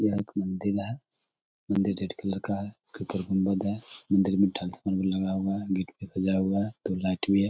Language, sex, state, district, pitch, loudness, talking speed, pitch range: Hindi, male, Bihar, Samastipur, 95 Hz, -29 LUFS, 210 wpm, 95-100 Hz